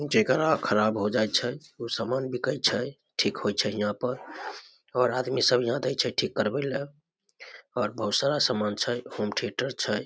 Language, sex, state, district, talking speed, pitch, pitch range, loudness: Maithili, male, Bihar, Samastipur, 185 wpm, 120 Hz, 105-140 Hz, -27 LUFS